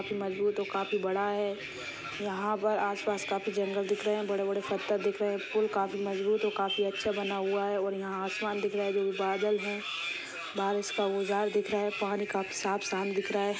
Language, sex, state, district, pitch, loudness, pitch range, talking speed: Hindi, female, Chhattisgarh, Sukma, 200 Hz, -31 LUFS, 195-205 Hz, 230 wpm